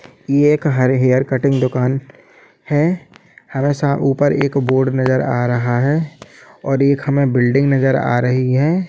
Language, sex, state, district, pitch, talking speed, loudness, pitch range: Hindi, male, Jharkhand, Sahebganj, 135 Hz, 155 wpm, -16 LUFS, 130-145 Hz